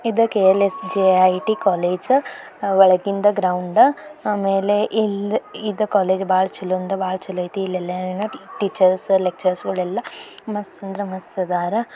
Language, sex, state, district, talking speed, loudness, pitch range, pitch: Kannada, female, Karnataka, Belgaum, 105 wpm, -19 LUFS, 185-210 Hz, 195 Hz